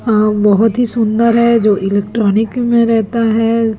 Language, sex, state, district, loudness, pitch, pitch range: Hindi, female, Chhattisgarh, Raipur, -13 LUFS, 225 Hz, 215-230 Hz